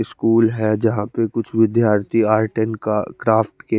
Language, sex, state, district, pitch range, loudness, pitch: Hindi, male, Chandigarh, Chandigarh, 110-115 Hz, -18 LUFS, 110 Hz